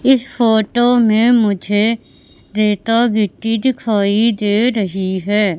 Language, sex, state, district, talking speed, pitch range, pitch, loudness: Hindi, female, Madhya Pradesh, Katni, 105 wpm, 205-235 Hz, 220 Hz, -15 LUFS